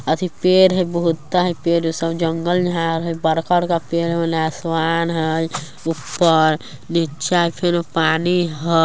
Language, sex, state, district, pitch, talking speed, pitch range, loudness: Bajjika, female, Bihar, Vaishali, 165 Hz, 150 wpm, 160-175 Hz, -18 LUFS